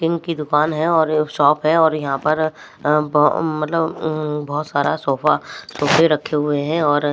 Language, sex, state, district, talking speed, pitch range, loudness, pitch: Hindi, female, Maharashtra, Mumbai Suburban, 170 wpm, 150-160 Hz, -18 LUFS, 150 Hz